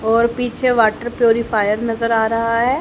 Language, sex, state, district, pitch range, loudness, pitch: Hindi, female, Haryana, Jhajjar, 225-240 Hz, -17 LUFS, 230 Hz